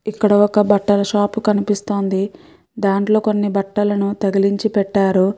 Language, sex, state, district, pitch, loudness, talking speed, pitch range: Telugu, female, Andhra Pradesh, Guntur, 205 Hz, -17 LUFS, 110 wpm, 200-210 Hz